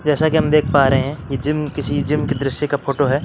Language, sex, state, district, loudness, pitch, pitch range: Hindi, male, Uttar Pradesh, Varanasi, -18 LUFS, 145 Hz, 140-150 Hz